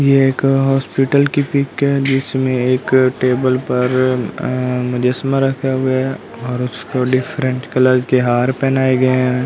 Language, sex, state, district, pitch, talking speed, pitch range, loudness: Hindi, male, Delhi, New Delhi, 130 Hz, 145 wpm, 125-135 Hz, -16 LUFS